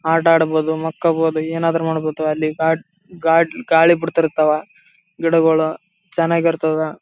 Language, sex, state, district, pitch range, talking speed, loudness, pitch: Kannada, male, Karnataka, Raichur, 155-165 Hz, 105 wpm, -17 LUFS, 160 Hz